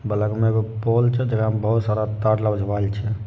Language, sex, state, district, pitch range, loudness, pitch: Angika, male, Bihar, Begusarai, 105-110 Hz, -21 LUFS, 110 Hz